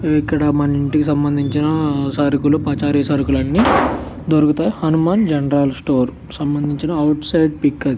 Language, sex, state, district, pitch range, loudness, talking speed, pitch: Telugu, male, Andhra Pradesh, Guntur, 145-155 Hz, -17 LUFS, 135 wpm, 145 Hz